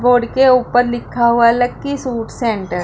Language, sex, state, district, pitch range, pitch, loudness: Hindi, female, Punjab, Pathankot, 235-250 Hz, 240 Hz, -15 LUFS